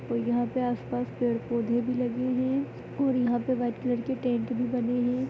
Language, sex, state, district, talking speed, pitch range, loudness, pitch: Hindi, female, Chhattisgarh, Kabirdham, 205 wpm, 240-255 Hz, -28 LUFS, 245 Hz